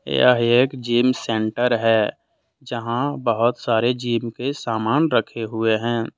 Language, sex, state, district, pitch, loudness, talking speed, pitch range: Hindi, male, Jharkhand, Deoghar, 120 Hz, -20 LUFS, 135 wpm, 115-125 Hz